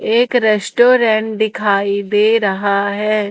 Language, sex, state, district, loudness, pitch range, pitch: Hindi, female, Madhya Pradesh, Umaria, -14 LUFS, 200-225 Hz, 215 Hz